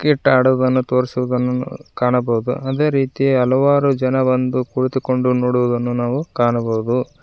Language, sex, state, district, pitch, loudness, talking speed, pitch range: Kannada, male, Karnataka, Koppal, 130 Hz, -17 LUFS, 110 wpm, 125-135 Hz